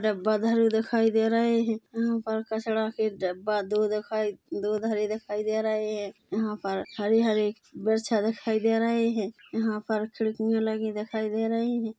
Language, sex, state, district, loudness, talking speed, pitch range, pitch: Hindi, female, Chhattisgarh, Korba, -27 LUFS, 175 wpm, 215-225 Hz, 220 Hz